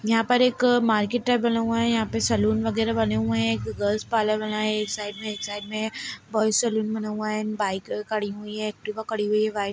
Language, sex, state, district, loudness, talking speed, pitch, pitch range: Hindi, female, Chhattisgarh, Sarguja, -25 LUFS, 240 wpm, 215 Hz, 210-225 Hz